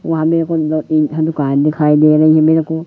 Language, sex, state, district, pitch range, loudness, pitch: Hindi, female, Madhya Pradesh, Katni, 155-160 Hz, -13 LUFS, 155 Hz